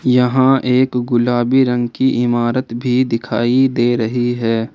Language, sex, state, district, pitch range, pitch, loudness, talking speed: Hindi, male, Jharkhand, Ranchi, 120-130 Hz, 125 Hz, -15 LUFS, 140 wpm